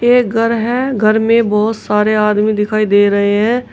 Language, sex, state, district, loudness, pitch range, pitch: Hindi, female, Uttar Pradesh, Shamli, -13 LUFS, 210-230 Hz, 215 Hz